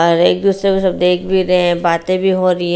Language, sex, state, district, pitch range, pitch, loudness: Hindi, female, Bihar, Patna, 175-190 Hz, 180 Hz, -14 LUFS